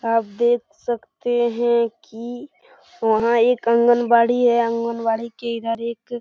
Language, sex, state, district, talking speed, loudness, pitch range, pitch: Hindi, female, Bihar, Saran, 135 wpm, -20 LUFS, 230-240 Hz, 235 Hz